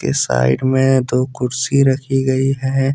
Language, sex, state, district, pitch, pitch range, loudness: Hindi, male, Jharkhand, Deoghar, 130 Hz, 130-135 Hz, -16 LUFS